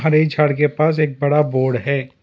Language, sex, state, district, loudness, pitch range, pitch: Hindi, male, Karnataka, Bangalore, -17 LUFS, 140-155 Hz, 150 Hz